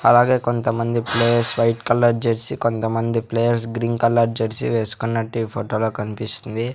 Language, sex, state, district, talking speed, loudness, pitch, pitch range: Telugu, male, Andhra Pradesh, Sri Satya Sai, 150 wpm, -20 LUFS, 115 Hz, 115-120 Hz